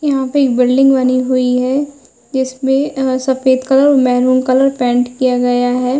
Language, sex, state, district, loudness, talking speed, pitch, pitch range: Hindi, female, Uttar Pradesh, Hamirpur, -13 LUFS, 170 wpm, 260 Hz, 250-270 Hz